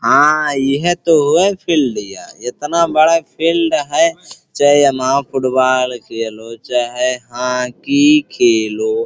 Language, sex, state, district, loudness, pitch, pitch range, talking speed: Bhojpuri, male, Uttar Pradesh, Gorakhpur, -14 LUFS, 145 Hz, 125-195 Hz, 105 wpm